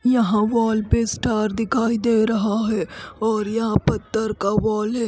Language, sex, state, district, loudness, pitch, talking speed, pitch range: Hindi, female, Odisha, Khordha, -21 LUFS, 220 Hz, 165 wpm, 215-230 Hz